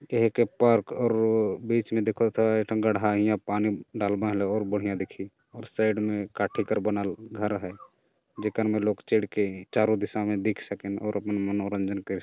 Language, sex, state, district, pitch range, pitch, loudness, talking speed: Chhattisgarhi, male, Chhattisgarh, Jashpur, 100-110 Hz, 105 Hz, -27 LUFS, 190 wpm